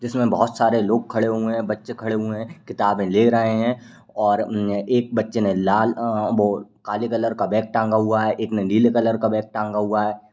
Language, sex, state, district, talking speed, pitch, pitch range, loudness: Hindi, male, Uttar Pradesh, Ghazipur, 225 wpm, 110 Hz, 105-115 Hz, -21 LUFS